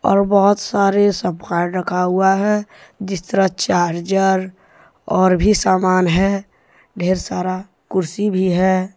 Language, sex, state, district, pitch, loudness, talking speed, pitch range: Hindi, male, Jharkhand, Deoghar, 190 Hz, -17 LUFS, 125 wpm, 185-200 Hz